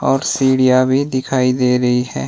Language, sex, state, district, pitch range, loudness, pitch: Hindi, male, Himachal Pradesh, Shimla, 125-130 Hz, -15 LUFS, 130 Hz